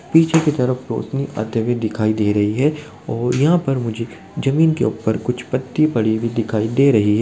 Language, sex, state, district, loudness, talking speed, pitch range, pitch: Hindi, male, Bihar, Muzaffarpur, -18 LUFS, 210 wpm, 110-140 Hz, 120 Hz